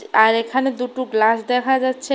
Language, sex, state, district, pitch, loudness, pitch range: Bengali, female, Tripura, West Tripura, 250 Hz, -18 LUFS, 225-260 Hz